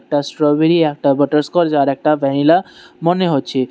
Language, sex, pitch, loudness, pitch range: Bengali, male, 150 Hz, -15 LUFS, 140-160 Hz